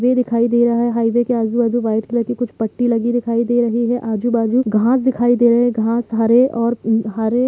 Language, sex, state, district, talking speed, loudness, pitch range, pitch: Hindi, female, Jharkhand, Sahebganj, 170 wpm, -17 LUFS, 230-240 Hz, 235 Hz